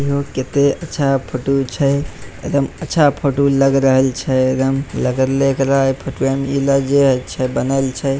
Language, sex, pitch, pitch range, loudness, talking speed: Maithili, male, 135 Hz, 130-140 Hz, -16 LUFS, 125 wpm